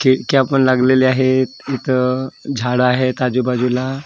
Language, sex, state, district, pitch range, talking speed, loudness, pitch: Marathi, male, Maharashtra, Gondia, 125-130 Hz, 120 wpm, -16 LUFS, 130 Hz